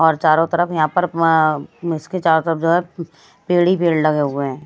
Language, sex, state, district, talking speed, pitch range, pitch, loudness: Hindi, female, Haryana, Jhajjar, 205 wpm, 155-175 Hz, 165 Hz, -17 LUFS